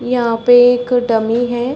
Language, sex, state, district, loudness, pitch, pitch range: Hindi, female, Chhattisgarh, Bastar, -13 LUFS, 245 Hz, 235-245 Hz